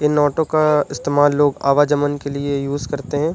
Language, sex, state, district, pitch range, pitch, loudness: Hindi, male, Uttar Pradesh, Budaun, 145-150 Hz, 145 Hz, -18 LUFS